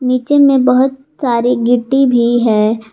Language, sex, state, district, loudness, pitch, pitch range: Hindi, female, Jharkhand, Garhwa, -12 LUFS, 250 Hz, 235-265 Hz